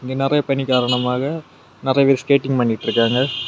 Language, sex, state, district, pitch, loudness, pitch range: Tamil, male, Tamil Nadu, Kanyakumari, 130 Hz, -18 LUFS, 125-135 Hz